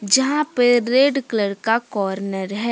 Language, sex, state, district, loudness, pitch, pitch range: Hindi, female, Jharkhand, Deoghar, -19 LUFS, 235 Hz, 200-260 Hz